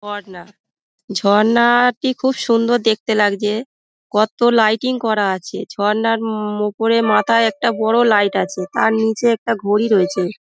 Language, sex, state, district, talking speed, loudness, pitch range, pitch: Bengali, female, West Bengal, Dakshin Dinajpur, 150 wpm, -16 LUFS, 205-230 Hz, 220 Hz